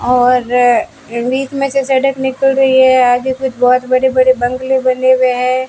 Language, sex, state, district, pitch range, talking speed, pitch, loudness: Hindi, female, Rajasthan, Bikaner, 250-265 Hz, 190 wpm, 255 Hz, -12 LUFS